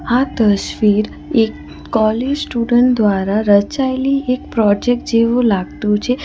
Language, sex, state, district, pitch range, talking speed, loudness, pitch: Gujarati, female, Gujarat, Valsad, 210-250 Hz, 115 wpm, -15 LUFS, 230 Hz